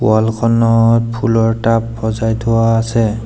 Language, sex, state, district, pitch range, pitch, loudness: Assamese, male, Assam, Sonitpur, 110-115 Hz, 115 Hz, -14 LUFS